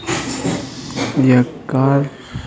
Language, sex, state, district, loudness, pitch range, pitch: Hindi, male, Bihar, Patna, -18 LUFS, 125-135 Hz, 130 Hz